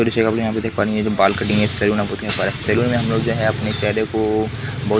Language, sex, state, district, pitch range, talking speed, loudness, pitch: Hindi, male, Bihar, Kishanganj, 105-115 Hz, 300 wpm, -19 LUFS, 110 Hz